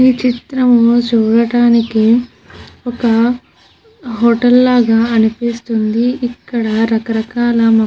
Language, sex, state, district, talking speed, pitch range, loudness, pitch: Telugu, female, Andhra Pradesh, Krishna, 85 wpm, 225-245 Hz, -13 LUFS, 235 Hz